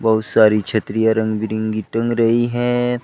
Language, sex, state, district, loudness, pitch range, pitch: Hindi, male, Uttar Pradesh, Shamli, -17 LUFS, 110-120 Hz, 110 Hz